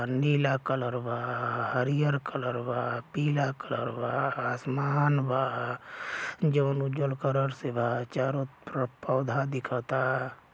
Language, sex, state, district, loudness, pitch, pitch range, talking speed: Bhojpuri, male, Uttar Pradesh, Gorakhpur, -30 LUFS, 135 Hz, 125-140 Hz, 110 wpm